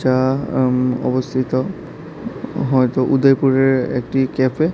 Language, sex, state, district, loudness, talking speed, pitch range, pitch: Bengali, male, Tripura, South Tripura, -17 LUFS, 100 wpm, 130-135 Hz, 130 Hz